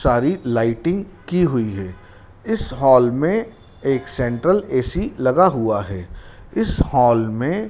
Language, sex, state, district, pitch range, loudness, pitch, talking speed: Hindi, male, Madhya Pradesh, Dhar, 110-170 Hz, -19 LUFS, 125 Hz, 130 wpm